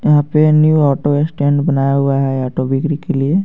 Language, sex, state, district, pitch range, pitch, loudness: Hindi, male, Jharkhand, Garhwa, 135-155 Hz, 145 Hz, -14 LUFS